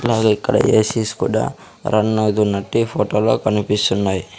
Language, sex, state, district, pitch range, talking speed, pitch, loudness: Telugu, male, Andhra Pradesh, Sri Satya Sai, 105-110 Hz, 135 wpm, 105 Hz, -18 LUFS